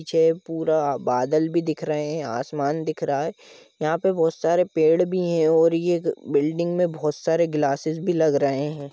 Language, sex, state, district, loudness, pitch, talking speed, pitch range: Hindi, male, Jharkhand, Jamtara, -22 LUFS, 160 Hz, 200 wpm, 150-170 Hz